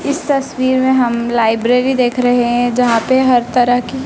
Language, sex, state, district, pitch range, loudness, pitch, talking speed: Hindi, male, Madhya Pradesh, Dhar, 240-260 Hz, -14 LUFS, 245 Hz, 190 wpm